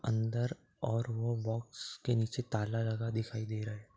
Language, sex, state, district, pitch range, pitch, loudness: Hindi, male, Uttar Pradesh, Etah, 110-120 Hz, 115 Hz, -36 LUFS